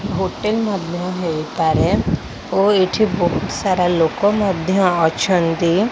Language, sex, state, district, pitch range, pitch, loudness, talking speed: Odia, female, Odisha, Khordha, 170-200 Hz, 185 Hz, -18 LUFS, 90 wpm